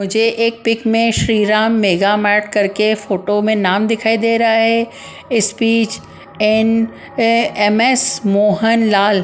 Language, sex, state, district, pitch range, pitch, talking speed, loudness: Hindi, female, Punjab, Pathankot, 205-230 Hz, 220 Hz, 145 wpm, -14 LUFS